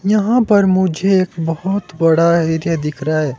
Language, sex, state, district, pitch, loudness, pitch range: Hindi, male, Himachal Pradesh, Shimla, 170 Hz, -15 LUFS, 160-195 Hz